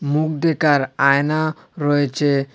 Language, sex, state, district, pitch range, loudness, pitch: Bengali, male, Assam, Hailakandi, 140-155 Hz, -18 LUFS, 145 Hz